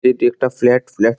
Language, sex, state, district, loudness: Bengali, male, West Bengal, Dakshin Dinajpur, -16 LUFS